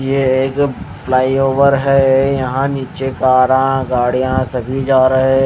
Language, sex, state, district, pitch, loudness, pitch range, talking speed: Hindi, male, Haryana, Rohtak, 130 Hz, -14 LUFS, 130-135 Hz, 130 wpm